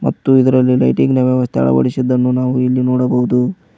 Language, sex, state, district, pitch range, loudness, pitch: Kannada, male, Karnataka, Koppal, 125-130 Hz, -14 LUFS, 125 Hz